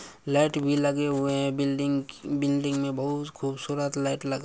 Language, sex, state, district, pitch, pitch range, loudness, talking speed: Maithili, male, Bihar, Samastipur, 140 Hz, 140-145 Hz, -27 LUFS, 150 wpm